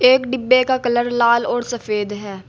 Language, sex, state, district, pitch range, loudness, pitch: Hindi, female, Uttar Pradesh, Saharanpur, 215-255 Hz, -18 LUFS, 240 Hz